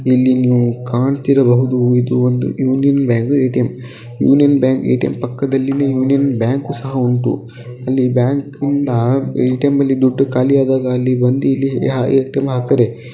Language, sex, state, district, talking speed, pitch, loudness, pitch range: Kannada, male, Karnataka, Dakshina Kannada, 150 wpm, 130 Hz, -15 LUFS, 125-135 Hz